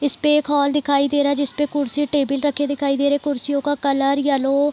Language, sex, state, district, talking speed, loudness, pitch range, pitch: Hindi, female, Bihar, Sitamarhi, 230 wpm, -19 LUFS, 280-290 Hz, 285 Hz